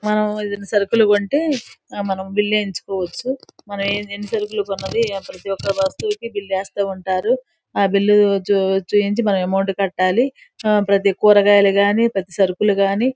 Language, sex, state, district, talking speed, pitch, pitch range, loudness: Telugu, female, Andhra Pradesh, Guntur, 130 wpm, 205 Hz, 195-210 Hz, -18 LUFS